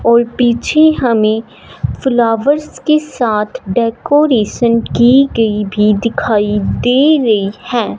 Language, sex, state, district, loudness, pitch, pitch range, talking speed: Hindi, female, Punjab, Fazilka, -13 LUFS, 235 Hz, 220-265 Hz, 105 wpm